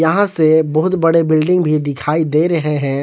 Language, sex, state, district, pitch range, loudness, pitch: Hindi, male, Jharkhand, Palamu, 150-165 Hz, -14 LUFS, 160 Hz